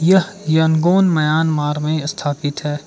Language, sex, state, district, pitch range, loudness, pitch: Hindi, male, Arunachal Pradesh, Lower Dibang Valley, 150-170 Hz, -17 LUFS, 155 Hz